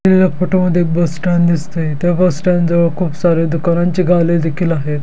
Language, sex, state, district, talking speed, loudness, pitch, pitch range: Marathi, male, Maharashtra, Dhule, 190 wpm, -14 LUFS, 170 Hz, 165-180 Hz